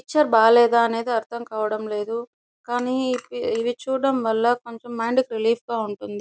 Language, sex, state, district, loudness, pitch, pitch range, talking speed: Telugu, female, Andhra Pradesh, Chittoor, -22 LUFS, 235 Hz, 225-250 Hz, 165 wpm